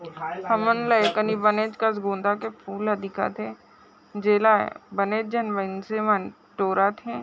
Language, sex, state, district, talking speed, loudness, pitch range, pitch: Chhattisgarhi, female, Chhattisgarh, Raigarh, 140 wpm, -24 LUFS, 200-220 Hz, 210 Hz